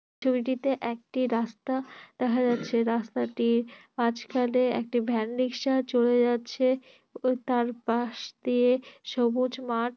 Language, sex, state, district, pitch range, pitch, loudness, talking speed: Bengali, female, West Bengal, Dakshin Dinajpur, 235-255 Hz, 245 Hz, -28 LUFS, 100 wpm